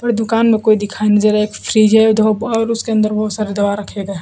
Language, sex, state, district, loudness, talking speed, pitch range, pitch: Hindi, female, Bihar, Kaimur, -14 LUFS, 285 wpm, 210-225 Hz, 215 Hz